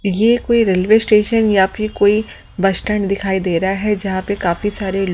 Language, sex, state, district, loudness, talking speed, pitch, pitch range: Hindi, female, Delhi, New Delhi, -16 LUFS, 200 wpm, 205 Hz, 190-215 Hz